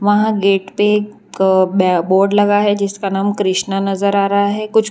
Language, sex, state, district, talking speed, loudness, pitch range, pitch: Hindi, female, Gujarat, Valsad, 205 wpm, -15 LUFS, 195-205 Hz, 200 Hz